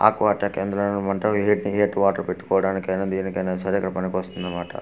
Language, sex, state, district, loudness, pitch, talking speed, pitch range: Telugu, male, Andhra Pradesh, Manyam, -23 LUFS, 95 Hz, 135 wpm, 95-100 Hz